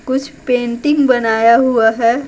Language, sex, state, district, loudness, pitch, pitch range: Hindi, female, Bihar, Patna, -13 LUFS, 245 Hz, 230-265 Hz